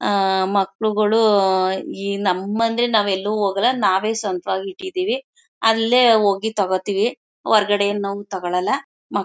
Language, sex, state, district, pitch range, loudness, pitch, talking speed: Kannada, female, Karnataka, Mysore, 195-225 Hz, -19 LUFS, 205 Hz, 125 wpm